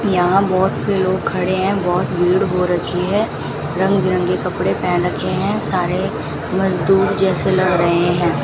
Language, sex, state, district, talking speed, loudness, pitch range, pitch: Hindi, female, Rajasthan, Bikaner, 155 wpm, -17 LUFS, 175-195 Hz, 185 Hz